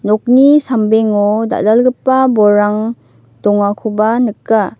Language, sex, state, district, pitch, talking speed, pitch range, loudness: Garo, female, Meghalaya, North Garo Hills, 220 Hz, 75 wpm, 205-240 Hz, -12 LUFS